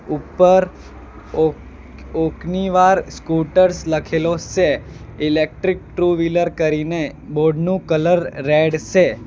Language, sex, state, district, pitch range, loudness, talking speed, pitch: Gujarati, male, Gujarat, Valsad, 150-180 Hz, -18 LUFS, 95 wpm, 160 Hz